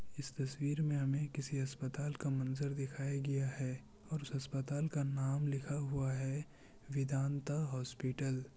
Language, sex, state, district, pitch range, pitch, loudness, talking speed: Hindi, male, Bihar, Kishanganj, 135-145 Hz, 140 Hz, -39 LUFS, 155 wpm